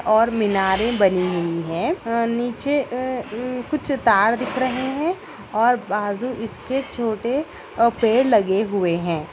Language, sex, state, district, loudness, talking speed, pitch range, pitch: Hindi, female, Bihar, Darbhanga, -21 LUFS, 150 wpm, 200-255 Hz, 230 Hz